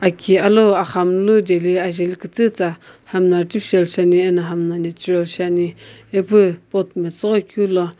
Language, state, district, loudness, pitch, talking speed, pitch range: Sumi, Nagaland, Kohima, -17 LUFS, 180 Hz, 120 wpm, 175-195 Hz